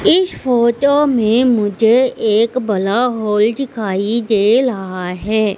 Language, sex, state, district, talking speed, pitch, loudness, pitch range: Hindi, female, Madhya Pradesh, Katni, 120 wpm, 225 Hz, -15 LUFS, 210-250 Hz